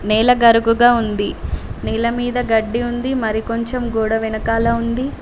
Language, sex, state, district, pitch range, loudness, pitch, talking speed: Telugu, female, Telangana, Mahabubabad, 225-240 Hz, -17 LUFS, 230 Hz, 140 wpm